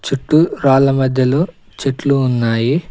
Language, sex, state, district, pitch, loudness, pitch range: Telugu, male, Telangana, Mahabubabad, 135 Hz, -15 LUFS, 130-145 Hz